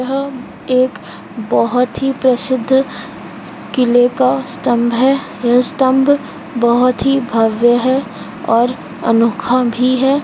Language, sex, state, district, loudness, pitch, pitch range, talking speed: Hindi, female, Chhattisgarh, Rajnandgaon, -14 LUFS, 250 Hz, 240-265 Hz, 110 wpm